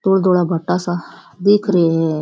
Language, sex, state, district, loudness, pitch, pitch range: Rajasthani, female, Rajasthan, Churu, -16 LUFS, 180 Hz, 170-190 Hz